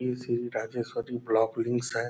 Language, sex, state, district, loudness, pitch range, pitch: Hindi, male, Bihar, Purnia, -30 LUFS, 115-120 Hz, 120 Hz